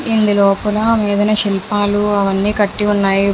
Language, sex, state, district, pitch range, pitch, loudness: Telugu, female, Andhra Pradesh, Visakhapatnam, 200-210 Hz, 205 Hz, -15 LUFS